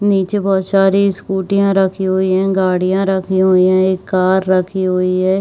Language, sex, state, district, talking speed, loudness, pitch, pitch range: Hindi, female, Chhattisgarh, Bilaspur, 175 wpm, -14 LUFS, 190 Hz, 185-195 Hz